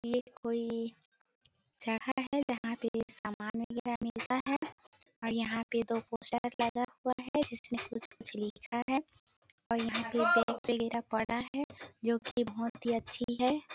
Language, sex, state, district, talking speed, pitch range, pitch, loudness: Hindi, female, Chhattisgarh, Bilaspur, 160 wpm, 230-245 Hz, 235 Hz, -35 LUFS